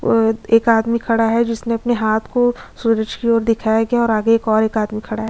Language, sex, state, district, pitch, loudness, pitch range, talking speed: Hindi, female, Chhattisgarh, Sukma, 225 Hz, -17 LUFS, 220-230 Hz, 235 wpm